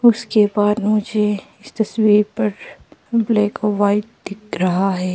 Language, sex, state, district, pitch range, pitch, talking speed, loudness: Hindi, female, Arunachal Pradesh, Papum Pare, 205-220 Hz, 210 Hz, 140 wpm, -18 LUFS